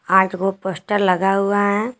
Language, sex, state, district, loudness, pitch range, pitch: Hindi, female, Jharkhand, Garhwa, -18 LUFS, 190-205 Hz, 195 Hz